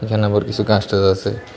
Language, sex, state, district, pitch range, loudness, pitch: Bengali, male, Tripura, West Tripura, 100-110 Hz, -17 LUFS, 105 Hz